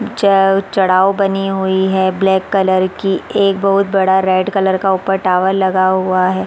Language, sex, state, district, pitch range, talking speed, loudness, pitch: Hindi, female, Chhattisgarh, Sarguja, 190-195 Hz, 160 wpm, -14 LUFS, 190 Hz